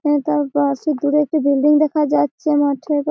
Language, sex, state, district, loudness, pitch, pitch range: Bengali, female, West Bengal, Malda, -17 LUFS, 295 Hz, 285-300 Hz